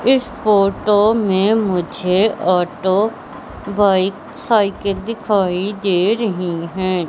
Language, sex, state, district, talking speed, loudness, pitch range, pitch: Hindi, female, Madhya Pradesh, Katni, 95 wpm, -17 LUFS, 185-215 Hz, 200 Hz